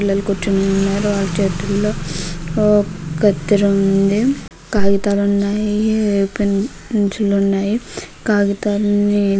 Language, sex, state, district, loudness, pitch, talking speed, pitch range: Telugu, female, Andhra Pradesh, Krishna, -17 LUFS, 200 Hz, 85 wpm, 195-205 Hz